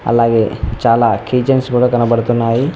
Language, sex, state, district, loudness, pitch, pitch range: Telugu, male, Telangana, Mahabubabad, -14 LUFS, 115 Hz, 115-125 Hz